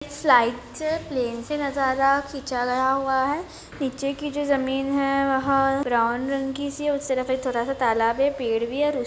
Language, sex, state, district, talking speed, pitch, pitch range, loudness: Hindi, female, Jharkhand, Jamtara, 210 wpm, 270 Hz, 255-280 Hz, -24 LUFS